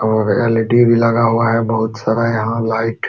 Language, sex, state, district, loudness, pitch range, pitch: Hindi, male, Uttar Pradesh, Jalaun, -15 LUFS, 110-115 Hz, 115 Hz